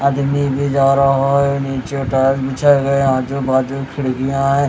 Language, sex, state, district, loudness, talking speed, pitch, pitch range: Hindi, male, Odisha, Khordha, -16 LUFS, 180 wpm, 135 Hz, 135-140 Hz